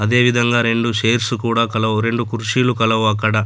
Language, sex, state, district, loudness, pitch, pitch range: Telugu, male, Telangana, Adilabad, -17 LUFS, 115 Hz, 110-120 Hz